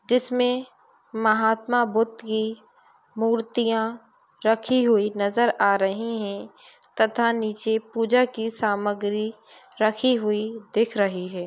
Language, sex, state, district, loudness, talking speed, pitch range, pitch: Hindi, female, Uttar Pradesh, Gorakhpur, -23 LUFS, 110 wpm, 215-240 Hz, 225 Hz